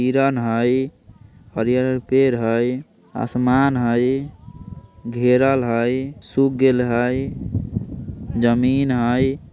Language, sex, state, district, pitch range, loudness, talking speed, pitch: Bajjika, male, Bihar, Vaishali, 120-135 Hz, -19 LUFS, 90 wpm, 125 Hz